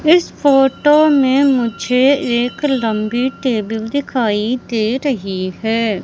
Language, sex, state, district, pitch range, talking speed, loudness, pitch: Hindi, female, Madhya Pradesh, Katni, 225-275 Hz, 110 wpm, -15 LUFS, 250 Hz